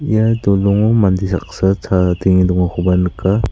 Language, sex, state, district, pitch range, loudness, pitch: Garo, male, Meghalaya, South Garo Hills, 90-110 Hz, -15 LUFS, 95 Hz